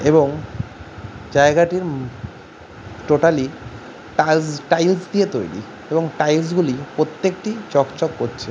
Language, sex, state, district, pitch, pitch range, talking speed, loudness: Bengali, male, West Bengal, Kolkata, 150 Hz, 125-165 Hz, 100 wpm, -19 LUFS